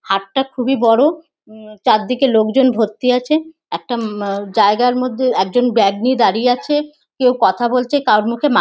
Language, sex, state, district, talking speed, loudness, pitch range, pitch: Bengali, female, West Bengal, North 24 Parganas, 165 wpm, -15 LUFS, 215-265 Hz, 245 Hz